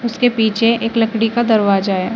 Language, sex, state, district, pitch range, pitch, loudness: Hindi, female, Uttar Pradesh, Shamli, 215-230 Hz, 225 Hz, -15 LUFS